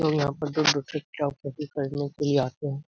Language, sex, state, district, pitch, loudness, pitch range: Hindi, male, Bihar, Jamui, 145 Hz, -27 LUFS, 140-150 Hz